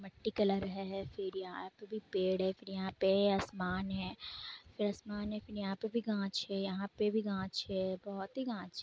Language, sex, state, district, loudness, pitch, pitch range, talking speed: Hindi, female, Bihar, Kishanganj, -37 LUFS, 195 Hz, 190-210 Hz, 215 wpm